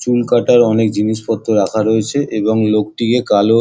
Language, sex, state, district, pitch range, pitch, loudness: Bengali, male, West Bengal, Jalpaiguri, 110-120 Hz, 110 Hz, -14 LUFS